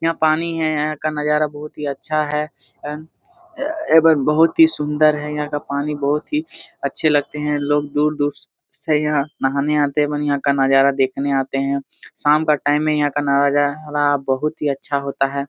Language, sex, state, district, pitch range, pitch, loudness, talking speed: Hindi, male, Jharkhand, Jamtara, 140-155 Hz, 150 Hz, -19 LUFS, 200 wpm